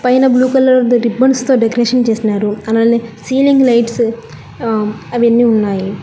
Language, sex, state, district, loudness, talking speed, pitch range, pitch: Telugu, female, Telangana, Hyderabad, -12 LUFS, 130 wpm, 225-255 Hz, 235 Hz